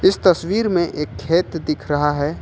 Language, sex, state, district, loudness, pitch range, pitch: Hindi, male, Jharkhand, Ranchi, -19 LUFS, 150-185 Hz, 165 Hz